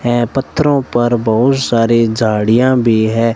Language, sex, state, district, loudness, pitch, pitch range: Hindi, male, Rajasthan, Bikaner, -13 LUFS, 120 Hz, 115-130 Hz